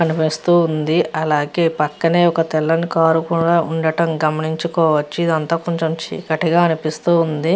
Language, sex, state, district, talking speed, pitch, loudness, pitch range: Telugu, female, Andhra Pradesh, Visakhapatnam, 110 wpm, 165 Hz, -17 LUFS, 155-170 Hz